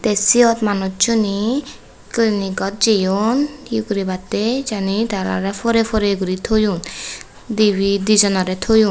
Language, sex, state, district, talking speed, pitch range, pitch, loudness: Chakma, female, Tripura, West Tripura, 115 wpm, 195-225 Hz, 210 Hz, -17 LUFS